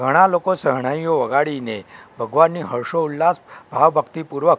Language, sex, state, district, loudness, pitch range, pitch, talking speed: Gujarati, male, Gujarat, Gandhinagar, -19 LUFS, 140-170 Hz, 155 Hz, 90 wpm